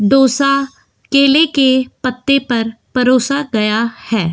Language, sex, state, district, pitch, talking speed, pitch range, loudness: Hindi, female, Goa, North and South Goa, 260 Hz, 110 wpm, 230-275 Hz, -14 LUFS